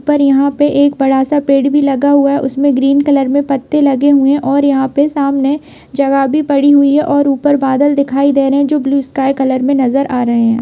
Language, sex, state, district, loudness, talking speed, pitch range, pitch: Hindi, female, Bihar, Kishanganj, -12 LUFS, 250 wpm, 270-285 Hz, 280 Hz